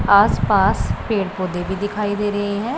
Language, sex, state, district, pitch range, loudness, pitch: Hindi, female, Punjab, Pathankot, 190-210 Hz, -19 LUFS, 205 Hz